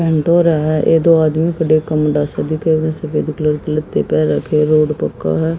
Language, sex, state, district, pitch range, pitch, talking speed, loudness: Hindi, female, Haryana, Jhajjar, 150-160 Hz, 155 Hz, 105 wpm, -15 LUFS